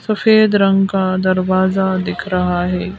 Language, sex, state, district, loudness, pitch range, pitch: Hindi, female, Madhya Pradesh, Bhopal, -15 LUFS, 185-195 Hz, 190 Hz